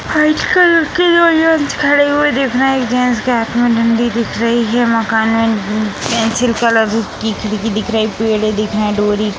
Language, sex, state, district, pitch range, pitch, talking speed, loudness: Hindi, female, Bihar, Sitamarhi, 220-270 Hz, 230 Hz, 235 wpm, -13 LUFS